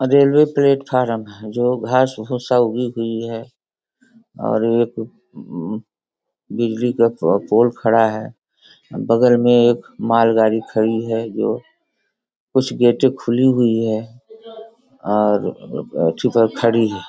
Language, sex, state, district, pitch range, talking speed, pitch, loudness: Hindi, female, Bihar, Sitamarhi, 115-125 Hz, 110 wpm, 120 Hz, -17 LUFS